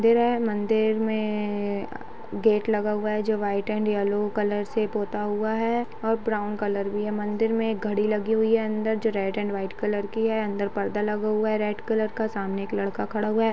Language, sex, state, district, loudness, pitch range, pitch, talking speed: Hindi, female, Bihar, Jahanabad, -26 LUFS, 205-220 Hz, 215 Hz, 225 wpm